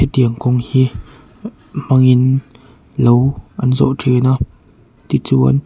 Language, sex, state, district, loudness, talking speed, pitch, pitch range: Mizo, male, Mizoram, Aizawl, -15 LUFS, 115 wpm, 125 Hz, 120-130 Hz